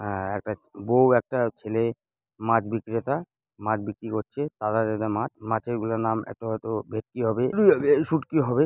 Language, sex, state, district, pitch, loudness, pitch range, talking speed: Bengali, male, West Bengal, Jalpaiguri, 115 Hz, -26 LUFS, 110-125 Hz, 125 wpm